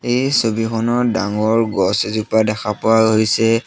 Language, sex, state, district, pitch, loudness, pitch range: Assamese, male, Assam, Sonitpur, 110 Hz, -16 LUFS, 110-115 Hz